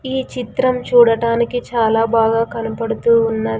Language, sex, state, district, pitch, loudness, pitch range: Telugu, female, Andhra Pradesh, Sri Satya Sai, 230 Hz, -16 LUFS, 225-245 Hz